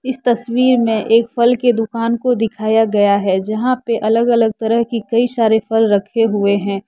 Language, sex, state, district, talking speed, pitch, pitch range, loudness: Hindi, female, Jharkhand, Deoghar, 200 wpm, 225 Hz, 215-235 Hz, -15 LUFS